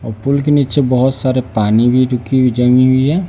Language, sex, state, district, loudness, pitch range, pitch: Hindi, male, Bihar, West Champaran, -13 LUFS, 125-135 Hz, 130 Hz